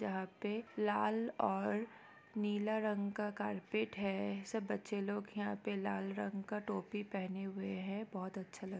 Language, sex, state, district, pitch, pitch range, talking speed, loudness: Hindi, female, Bihar, East Champaran, 205 Hz, 195-210 Hz, 165 wpm, -40 LUFS